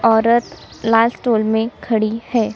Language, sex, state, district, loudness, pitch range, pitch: Hindi, female, Chhattisgarh, Sukma, -17 LUFS, 220-230 Hz, 225 Hz